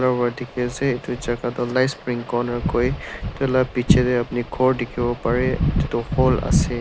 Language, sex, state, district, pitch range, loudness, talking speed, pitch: Nagamese, male, Nagaland, Dimapur, 120-130 Hz, -22 LUFS, 195 wpm, 125 Hz